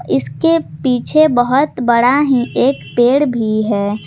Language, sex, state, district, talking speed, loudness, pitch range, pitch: Hindi, female, Jharkhand, Ranchi, 130 wpm, -14 LUFS, 205-260 Hz, 240 Hz